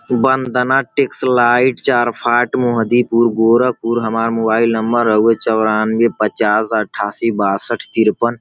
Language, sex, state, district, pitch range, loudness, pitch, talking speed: Bhojpuri, male, Uttar Pradesh, Gorakhpur, 110-120 Hz, -15 LUFS, 115 Hz, 120 wpm